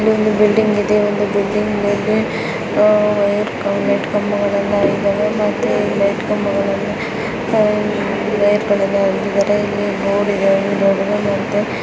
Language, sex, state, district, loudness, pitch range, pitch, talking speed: Kannada, female, Karnataka, Chamarajanagar, -16 LUFS, 200-210 Hz, 205 Hz, 125 wpm